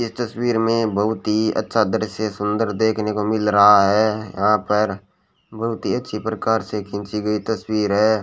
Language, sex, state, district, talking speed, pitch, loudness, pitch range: Hindi, male, Rajasthan, Bikaner, 175 wpm, 110 Hz, -20 LUFS, 105-110 Hz